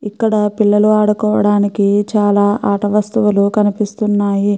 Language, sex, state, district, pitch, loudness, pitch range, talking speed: Telugu, female, Andhra Pradesh, Krishna, 205 Hz, -14 LUFS, 205-210 Hz, 90 wpm